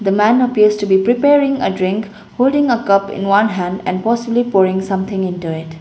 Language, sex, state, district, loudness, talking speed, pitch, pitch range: English, female, Sikkim, Gangtok, -15 LUFS, 195 wpm, 200 Hz, 190-235 Hz